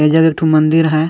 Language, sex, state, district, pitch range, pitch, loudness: Sadri, male, Chhattisgarh, Jashpur, 155-160 Hz, 160 Hz, -12 LUFS